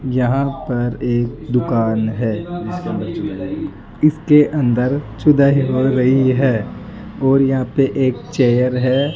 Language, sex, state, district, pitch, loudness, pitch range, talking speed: Hindi, male, Rajasthan, Jaipur, 130 Hz, -17 LUFS, 125-140 Hz, 105 wpm